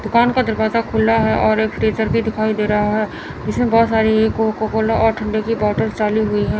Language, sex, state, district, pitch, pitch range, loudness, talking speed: Hindi, male, Chandigarh, Chandigarh, 220 Hz, 215-225 Hz, -17 LUFS, 220 wpm